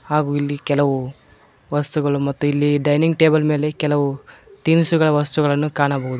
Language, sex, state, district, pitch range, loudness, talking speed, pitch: Kannada, male, Karnataka, Koppal, 145-150 Hz, -18 LUFS, 125 wpm, 145 Hz